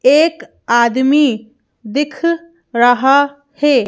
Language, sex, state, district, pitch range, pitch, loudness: Hindi, female, Madhya Pradesh, Bhopal, 245-295 Hz, 280 Hz, -14 LUFS